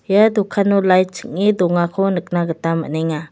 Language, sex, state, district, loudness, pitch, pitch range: Garo, female, Meghalaya, West Garo Hills, -17 LUFS, 185 Hz, 165-200 Hz